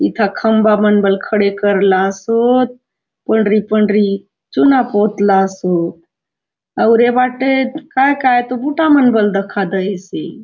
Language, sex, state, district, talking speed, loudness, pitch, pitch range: Halbi, female, Chhattisgarh, Bastar, 115 wpm, -14 LUFS, 215 Hz, 195-250 Hz